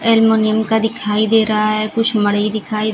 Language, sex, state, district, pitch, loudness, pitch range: Hindi, female, Bihar, Kaimur, 215 Hz, -15 LUFS, 215-225 Hz